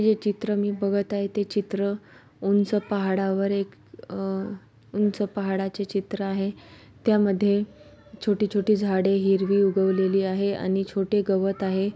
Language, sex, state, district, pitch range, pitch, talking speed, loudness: Marathi, male, Maharashtra, Pune, 195-205 Hz, 200 Hz, 145 wpm, -25 LUFS